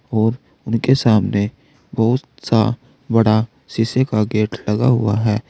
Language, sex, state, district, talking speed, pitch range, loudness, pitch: Hindi, male, Uttar Pradesh, Saharanpur, 130 wpm, 110-125 Hz, -18 LUFS, 115 Hz